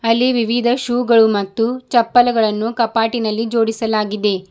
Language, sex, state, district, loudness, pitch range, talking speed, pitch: Kannada, female, Karnataka, Bidar, -16 LUFS, 220-240 Hz, 105 wpm, 230 Hz